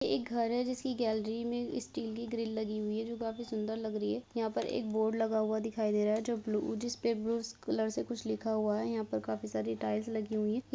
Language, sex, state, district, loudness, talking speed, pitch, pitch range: Hindi, female, Uttar Pradesh, Hamirpur, -35 LUFS, 275 wpm, 220 Hz, 215-230 Hz